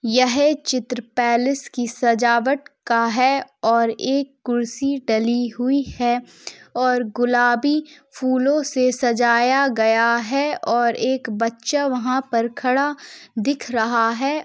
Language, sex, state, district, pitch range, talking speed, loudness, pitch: Hindi, female, Uttar Pradesh, Jalaun, 235-275 Hz, 120 wpm, -20 LUFS, 250 Hz